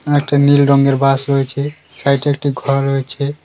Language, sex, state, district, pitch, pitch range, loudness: Bengali, male, West Bengal, Cooch Behar, 140 Hz, 135-145 Hz, -15 LUFS